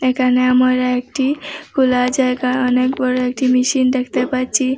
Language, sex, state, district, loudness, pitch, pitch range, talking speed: Bengali, female, Assam, Hailakandi, -16 LUFS, 255 Hz, 250-260 Hz, 140 wpm